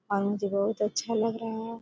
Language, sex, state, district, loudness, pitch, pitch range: Hindi, female, Chhattisgarh, Korba, -29 LUFS, 220 Hz, 200-225 Hz